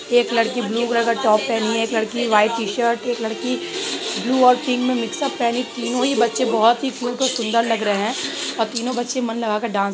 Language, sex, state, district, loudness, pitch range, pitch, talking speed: Hindi, female, Uttar Pradesh, Hamirpur, -20 LUFS, 225-245 Hz, 235 Hz, 265 wpm